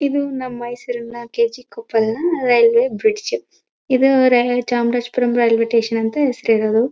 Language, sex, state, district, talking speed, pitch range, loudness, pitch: Kannada, female, Karnataka, Mysore, 130 wpm, 230-260 Hz, -17 LUFS, 245 Hz